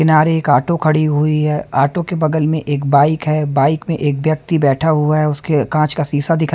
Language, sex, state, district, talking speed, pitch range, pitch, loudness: Hindi, male, Haryana, Charkhi Dadri, 240 wpm, 145-160 Hz, 155 Hz, -15 LUFS